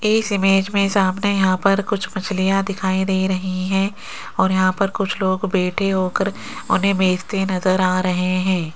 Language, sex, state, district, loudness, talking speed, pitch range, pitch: Hindi, female, Rajasthan, Jaipur, -19 LUFS, 170 wpm, 185-195 Hz, 190 Hz